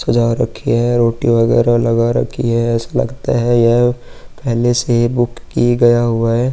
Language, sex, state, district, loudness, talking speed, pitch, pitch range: Hindi, male, Uttar Pradesh, Muzaffarnagar, -14 LUFS, 175 wpm, 120 Hz, 115-120 Hz